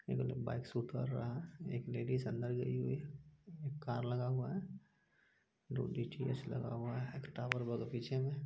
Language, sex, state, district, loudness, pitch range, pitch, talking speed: Hindi, male, Bihar, Saran, -41 LUFS, 120-140 Hz, 125 Hz, 205 wpm